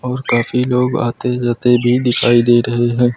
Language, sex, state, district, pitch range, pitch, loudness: Hindi, male, Uttar Pradesh, Lucknow, 120-125 Hz, 120 Hz, -14 LUFS